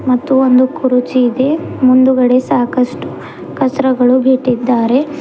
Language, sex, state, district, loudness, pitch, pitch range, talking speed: Kannada, female, Karnataka, Bidar, -12 LUFS, 255 Hz, 250-265 Hz, 90 wpm